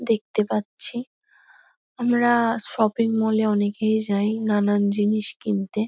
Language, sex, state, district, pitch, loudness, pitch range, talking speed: Bengali, female, West Bengal, Kolkata, 220 Hz, -22 LUFS, 210-240 Hz, 110 wpm